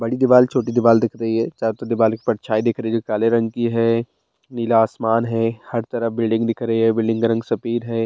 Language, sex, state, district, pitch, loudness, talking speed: Hindi, male, Bihar, Bhagalpur, 115 Hz, -19 LUFS, 255 wpm